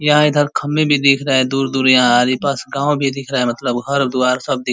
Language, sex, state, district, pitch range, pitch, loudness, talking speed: Hindi, male, Uttar Pradesh, Ghazipur, 125-140 Hz, 135 Hz, -15 LUFS, 255 wpm